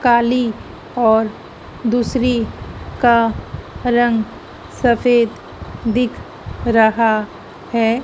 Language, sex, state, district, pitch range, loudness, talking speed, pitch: Hindi, female, Madhya Pradesh, Dhar, 225-245 Hz, -17 LUFS, 65 wpm, 235 Hz